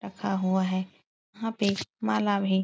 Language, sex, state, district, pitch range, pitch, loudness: Hindi, female, Uttar Pradesh, Etah, 185-200 Hz, 190 Hz, -28 LUFS